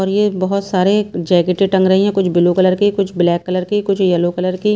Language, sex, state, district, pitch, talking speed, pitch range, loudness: Hindi, female, Himachal Pradesh, Shimla, 190 Hz, 265 wpm, 180-200 Hz, -15 LUFS